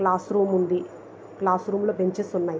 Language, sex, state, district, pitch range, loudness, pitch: Telugu, female, Andhra Pradesh, Visakhapatnam, 180-200 Hz, -25 LUFS, 185 Hz